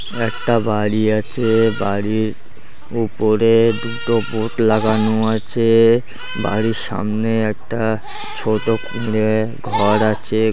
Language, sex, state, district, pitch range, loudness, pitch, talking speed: Bengali, male, West Bengal, Malda, 110-115 Hz, -18 LUFS, 110 Hz, 90 wpm